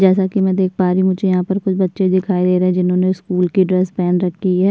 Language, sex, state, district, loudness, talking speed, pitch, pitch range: Hindi, female, Uttar Pradesh, Budaun, -16 LUFS, 290 wpm, 185 Hz, 180-190 Hz